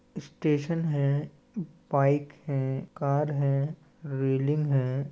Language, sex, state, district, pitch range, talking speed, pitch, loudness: Chhattisgarhi, male, Chhattisgarh, Balrampur, 140-155 Hz, 95 wpm, 145 Hz, -28 LUFS